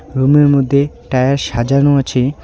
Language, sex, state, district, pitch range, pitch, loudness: Bengali, male, West Bengal, Alipurduar, 130-140 Hz, 135 Hz, -13 LUFS